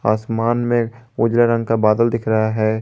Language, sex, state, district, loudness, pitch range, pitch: Hindi, male, Jharkhand, Garhwa, -18 LUFS, 110-115 Hz, 115 Hz